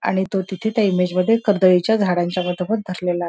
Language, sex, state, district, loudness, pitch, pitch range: Marathi, female, Maharashtra, Nagpur, -19 LUFS, 185 Hz, 180-205 Hz